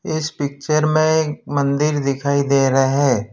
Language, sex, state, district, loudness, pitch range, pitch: Hindi, male, Gujarat, Valsad, -18 LUFS, 140-155 Hz, 145 Hz